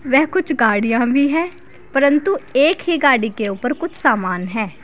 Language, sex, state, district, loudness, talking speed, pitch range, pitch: Hindi, female, Uttar Pradesh, Saharanpur, -17 LUFS, 175 wpm, 225-310 Hz, 275 Hz